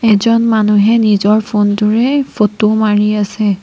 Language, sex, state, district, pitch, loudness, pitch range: Assamese, female, Assam, Sonitpur, 210 Hz, -12 LUFS, 210-225 Hz